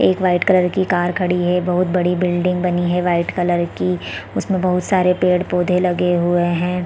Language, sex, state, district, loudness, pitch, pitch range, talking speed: Hindi, female, Chhattisgarh, Bilaspur, -18 LUFS, 180 Hz, 175-180 Hz, 190 wpm